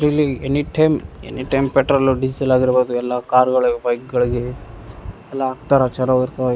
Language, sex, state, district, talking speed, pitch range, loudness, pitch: Kannada, male, Karnataka, Raichur, 135 wpm, 125-135 Hz, -18 LUFS, 130 Hz